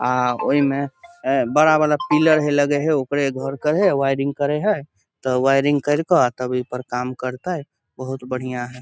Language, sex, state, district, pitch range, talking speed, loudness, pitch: Maithili, male, Bihar, Samastipur, 125-150 Hz, 195 wpm, -20 LUFS, 140 Hz